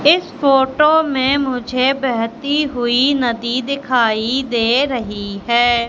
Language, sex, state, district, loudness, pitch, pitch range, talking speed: Hindi, female, Madhya Pradesh, Katni, -16 LUFS, 255 Hz, 235-280 Hz, 110 wpm